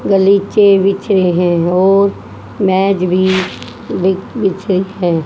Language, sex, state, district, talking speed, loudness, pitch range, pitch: Hindi, female, Haryana, Jhajjar, 115 wpm, -13 LUFS, 185-195 Hz, 190 Hz